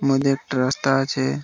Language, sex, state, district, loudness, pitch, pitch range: Bengali, male, West Bengal, Purulia, -21 LUFS, 135 Hz, 130-135 Hz